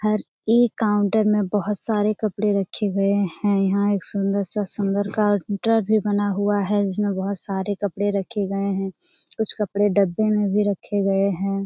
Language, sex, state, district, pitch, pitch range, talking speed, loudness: Hindi, female, Bihar, Jamui, 205 Hz, 195-210 Hz, 180 wpm, -22 LUFS